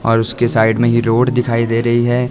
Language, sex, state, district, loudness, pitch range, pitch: Hindi, male, Himachal Pradesh, Shimla, -14 LUFS, 115-120 Hz, 120 Hz